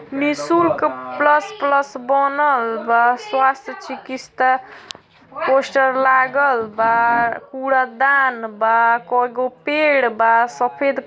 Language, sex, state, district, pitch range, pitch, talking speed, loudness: Bhojpuri, female, Uttar Pradesh, Ghazipur, 235-280 Hz, 265 Hz, 100 wpm, -17 LUFS